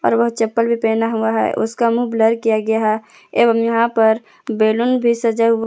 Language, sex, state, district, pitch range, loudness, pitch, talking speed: Hindi, female, Jharkhand, Palamu, 225-235 Hz, -17 LUFS, 230 Hz, 220 wpm